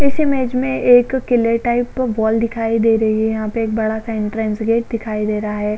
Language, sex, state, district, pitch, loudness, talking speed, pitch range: Hindi, female, Maharashtra, Chandrapur, 225 Hz, -17 LUFS, 230 wpm, 220-245 Hz